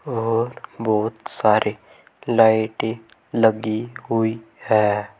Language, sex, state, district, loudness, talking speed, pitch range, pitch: Hindi, male, Uttar Pradesh, Saharanpur, -21 LUFS, 80 wpm, 110-115 Hz, 110 Hz